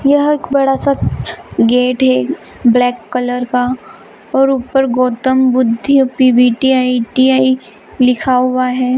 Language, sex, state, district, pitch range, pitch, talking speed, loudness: Hindi, female, Bihar, Vaishali, 250-265 Hz, 255 Hz, 115 wpm, -13 LUFS